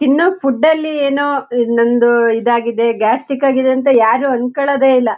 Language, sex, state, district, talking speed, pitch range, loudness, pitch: Kannada, female, Karnataka, Shimoga, 140 wpm, 235-280 Hz, -13 LUFS, 260 Hz